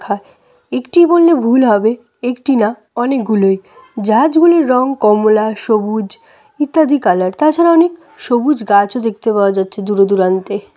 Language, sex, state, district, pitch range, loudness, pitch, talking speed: Bengali, female, West Bengal, Kolkata, 205-295 Hz, -13 LUFS, 230 Hz, 130 wpm